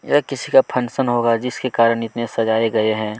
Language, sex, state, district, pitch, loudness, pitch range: Hindi, male, Chhattisgarh, Kabirdham, 115 Hz, -18 LUFS, 115-130 Hz